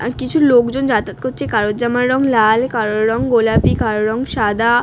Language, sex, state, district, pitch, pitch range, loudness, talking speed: Bengali, female, West Bengal, Dakshin Dinajpur, 230 Hz, 215-250 Hz, -15 LUFS, 185 wpm